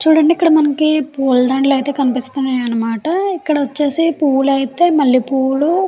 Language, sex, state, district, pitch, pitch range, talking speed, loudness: Telugu, female, Andhra Pradesh, Chittoor, 280 Hz, 265-315 Hz, 135 wpm, -14 LUFS